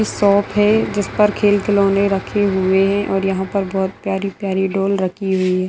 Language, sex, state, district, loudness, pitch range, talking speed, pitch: Hindi, female, Bihar, Samastipur, -17 LUFS, 190-205 Hz, 190 wpm, 195 Hz